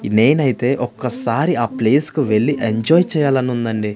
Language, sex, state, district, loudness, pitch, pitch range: Telugu, male, Andhra Pradesh, Manyam, -17 LUFS, 125 Hz, 110-145 Hz